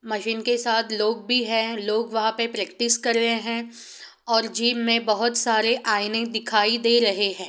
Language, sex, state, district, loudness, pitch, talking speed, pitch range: Hindi, female, Bihar, East Champaran, -22 LUFS, 225 Hz, 185 wpm, 220-235 Hz